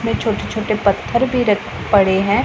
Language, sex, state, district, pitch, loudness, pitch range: Hindi, female, Punjab, Pathankot, 210 Hz, -17 LUFS, 200-230 Hz